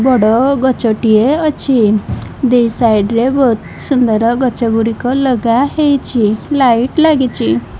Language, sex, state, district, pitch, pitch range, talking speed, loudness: Odia, female, Odisha, Malkangiri, 245 Hz, 225-265 Hz, 115 wpm, -12 LUFS